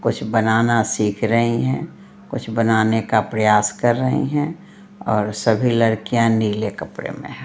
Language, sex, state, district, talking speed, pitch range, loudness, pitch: Hindi, female, Bihar, Patna, 145 wpm, 110-130 Hz, -19 LUFS, 115 Hz